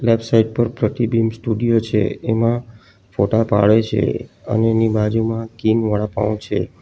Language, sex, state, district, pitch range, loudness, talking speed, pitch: Gujarati, male, Gujarat, Valsad, 105-115 Hz, -18 LUFS, 140 wpm, 110 Hz